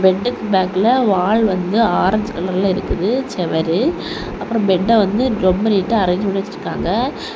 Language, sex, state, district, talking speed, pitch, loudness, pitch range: Tamil, female, Tamil Nadu, Kanyakumari, 130 wpm, 200 Hz, -17 LUFS, 185-225 Hz